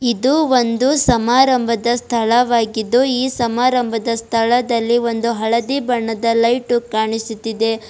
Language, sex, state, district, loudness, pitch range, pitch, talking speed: Kannada, female, Karnataka, Bidar, -16 LUFS, 230-250 Hz, 235 Hz, 90 wpm